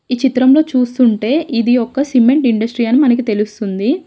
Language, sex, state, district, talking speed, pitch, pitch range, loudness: Telugu, female, Telangana, Mahabubabad, 150 wpm, 245 Hz, 230-270 Hz, -13 LUFS